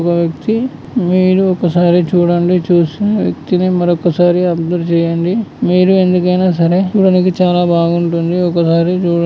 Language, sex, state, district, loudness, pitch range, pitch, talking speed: Telugu, male, Andhra Pradesh, Srikakulam, -13 LUFS, 170-185 Hz, 175 Hz, 115 wpm